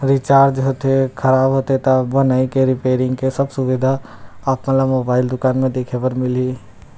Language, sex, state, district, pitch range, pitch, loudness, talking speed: Chhattisgarhi, male, Chhattisgarh, Rajnandgaon, 130-135 Hz, 130 Hz, -17 LUFS, 165 wpm